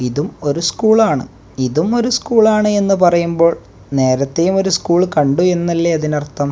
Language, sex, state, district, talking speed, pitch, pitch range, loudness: Malayalam, male, Kerala, Kasaragod, 130 wpm, 170 Hz, 145-190 Hz, -15 LUFS